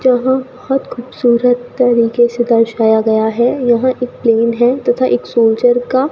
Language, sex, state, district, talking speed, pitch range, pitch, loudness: Hindi, female, Rajasthan, Bikaner, 165 wpm, 235-255 Hz, 245 Hz, -13 LUFS